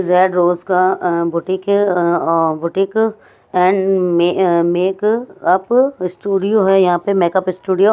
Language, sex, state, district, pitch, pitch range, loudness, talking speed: Hindi, female, Odisha, Sambalpur, 185 Hz, 175-195 Hz, -15 LUFS, 150 wpm